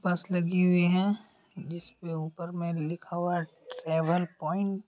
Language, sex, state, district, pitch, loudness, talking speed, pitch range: Hindi, male, Uttar Pradesh, Deoria, 175 Hz, -30 LUFS, 145 wpm, 170-185 Hz